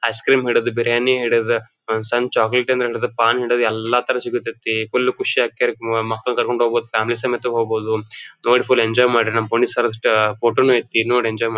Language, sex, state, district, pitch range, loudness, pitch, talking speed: Kannada, male, Karnataka, Dharwad, 115-125 Hz, -18 LUFS, 120 Hz, 160 wpm